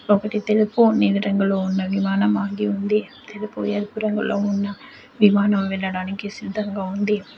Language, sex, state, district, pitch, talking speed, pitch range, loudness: Telugu, female, Telangana, Adilabad, 205 Hz, 120 wpm, 200-215 Hz, -21 LUFS